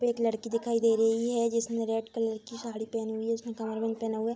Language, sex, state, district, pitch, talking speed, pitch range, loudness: Hindi, female, Bihar, Bhagalpur, 230 Hz, 275 wpm, 225-230 Hz, -30 LUFS